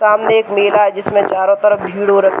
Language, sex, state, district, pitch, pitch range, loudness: Hindi, female, Bihar, Gaya, 200 Hz, 200-210 Hz, -13 LUFS